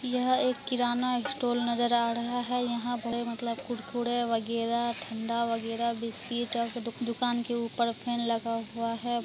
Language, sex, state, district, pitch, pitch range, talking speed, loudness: Hindi, female, Bihar, Araria, 235 Hz, 230-245 Hz, 155 wpm, -30 LUFS